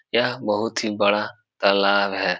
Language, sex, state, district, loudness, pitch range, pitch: Hindi, male, Bihar, Supaul, -21 LUFS, 100-105 Hz, 105 Hz